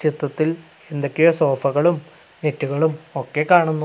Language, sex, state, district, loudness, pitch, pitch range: Malayalam, male, Kerala, Kasaragod, -20 LUFS, 155 Hz, 145-160 Hz